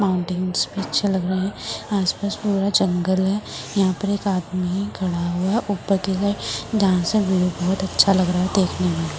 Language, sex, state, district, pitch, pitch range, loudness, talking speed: Hindi, female, Delhi, New Delhi, 190 Hz, 180-200 Hz, -21 LUFS, 135 wpm